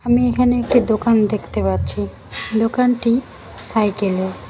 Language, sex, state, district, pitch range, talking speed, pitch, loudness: Bengali, female, West Bengal, Cooch Behar, 185-245 Hz, 105 wpm, 220 Hz, -18 LUFS